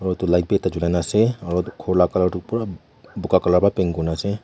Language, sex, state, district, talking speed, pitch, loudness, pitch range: Nagamese, male, Nagaland, Kohima, 270 wpm, 90 Hz, -20 LUFS, 90-100 Hz